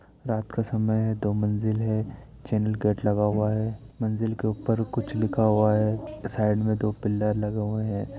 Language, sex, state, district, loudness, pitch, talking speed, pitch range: Hindi, male, Bihar, East Champaran, -26 LUFS, 110 Hz, 185 wpm, 105-110 Hz